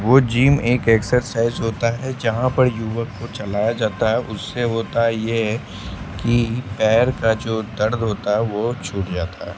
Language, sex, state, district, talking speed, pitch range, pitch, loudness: Hindi, male, Bihar, Katihar, 175 wpm, 105-120 Hz, 115 Hz, -20 LUFS